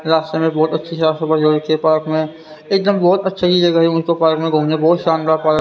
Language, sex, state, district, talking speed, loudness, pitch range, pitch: Hindi, male, Haryana, Rohtak, 255 wpm, -15 LUFS, 155-165 Hz, 160 Hz